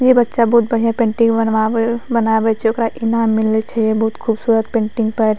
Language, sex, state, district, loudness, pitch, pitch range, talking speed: Maithili, female, Bihar, Madhepura, -16 LUFS, 225 Hz, 220-230 Hz, 180 wpm